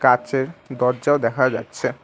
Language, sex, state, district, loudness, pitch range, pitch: Bengali, male, West Bengal, Alipurduar, -21 LUFS, 125-135 Hz, 130 Hz